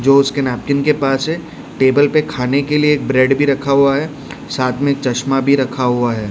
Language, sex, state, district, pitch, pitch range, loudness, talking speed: Hindi, male, Odisha, Khordha, 140 Hz, 130-145 Hz, -15 LUFS, 230 wpm